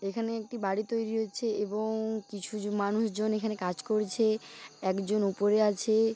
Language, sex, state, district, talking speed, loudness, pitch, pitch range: Bengali, female, West Bengal, Paschim Medinipur, 155 wpm, -31 LUFS, 215 Hz, 205-220 Hz